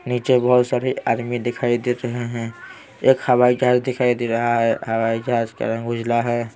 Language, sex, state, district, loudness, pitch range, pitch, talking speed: Hindi, male, Bihar, Patna, -20 LUFS, 115-125 Hz, 120 Hz, 190 wpm